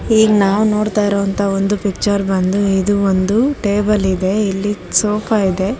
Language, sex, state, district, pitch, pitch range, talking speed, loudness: Kannada, female, Karnataka, Bangalore, 200 Hz, 195-210 Hz, 155 wpm, -15 LUFS